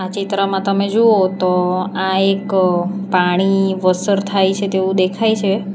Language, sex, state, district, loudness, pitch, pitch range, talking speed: Gujarati, female, Gujarat, Valsad, -16 LUFS, 195 Hz, 185-200 Hz, 135 wpm